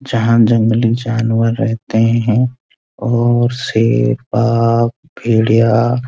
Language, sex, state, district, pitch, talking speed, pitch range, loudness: Hindi, male, Uttarakhand, Uttarkashi, 115 Hz, 100 wpm, 115-120 Hz, -14 LUFS